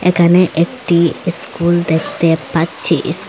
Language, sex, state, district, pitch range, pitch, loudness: Bengali, female, Assam, Hailakandi, 165-175 Hz, 170 Hz, -14 LUFS